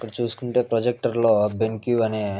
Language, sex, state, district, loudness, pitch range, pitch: Telugu, male, Andhra Pradesh, Visakhapatnam, -22 LUFS, 110-120 Hz, 115 Hz